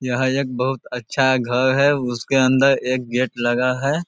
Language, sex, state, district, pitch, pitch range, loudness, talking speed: Hindi, male, Bihar, Sitamarhi, 130 Hz, 125-135 Hz, -19 LUFS, 175 wpm